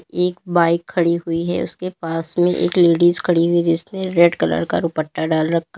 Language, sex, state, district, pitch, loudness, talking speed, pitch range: Hindi, female, Uttar Pradesh, Lalitpur, 170 Hz, -18 LUFS, 195 wpm, 165-175 Hz